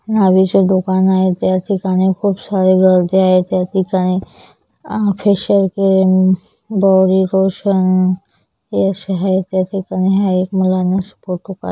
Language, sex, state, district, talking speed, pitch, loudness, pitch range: Marathi, female, Maharashtra, Chandrapur, 105 wpm, 190 Hz, -15 LUFS, 185-195 Hz